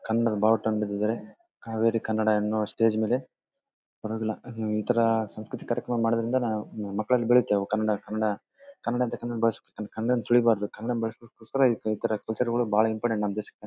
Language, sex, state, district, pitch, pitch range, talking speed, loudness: Kannada, male, Karnataka, Bellary, 115 Hz, 110-120 Hz, 135 wpm, -27 LUFS